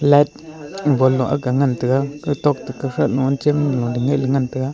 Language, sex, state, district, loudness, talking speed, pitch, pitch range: Wancho, male, Arunachal Pradesh, Longding, -19 LUFS, 230 wpm, 135 Hz, 130-145 Hz